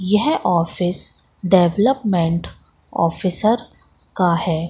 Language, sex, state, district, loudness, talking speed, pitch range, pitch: Hindi, female, Madhya Pradesh, Katni, -19 LUFS, 75 wpm, 170-200 Hz, 180 Hz